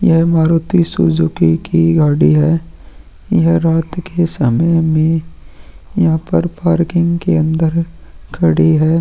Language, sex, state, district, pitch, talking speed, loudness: Hindi, male, Uttarakhand, Tehri Garhwal, 160 Hz, 120 wpm, -14 LUFS